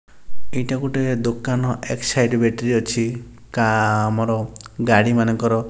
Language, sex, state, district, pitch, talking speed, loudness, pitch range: Odia, male, Odisha, Nuapada, 115 Hz, 105 wpm, -20 LUFS, 115-120 Hz